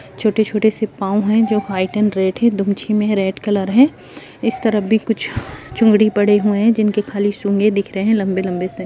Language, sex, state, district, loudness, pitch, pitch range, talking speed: Hindi, female, Uttar Pradesh, Jalaun, -16 LUFS, 210 Hz, 200-220 Hz, 215 wpm